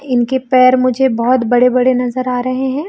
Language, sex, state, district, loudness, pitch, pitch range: Hindi, female, Chhattisgarh, Bilaspur, -13 LUFS, 255 Hz, 250-260 Hz